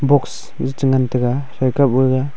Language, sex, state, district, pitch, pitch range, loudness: Wancho, male, Arunachal Pradesh, Longding, 130 Hz, 130-140 Hz, -17 LUFS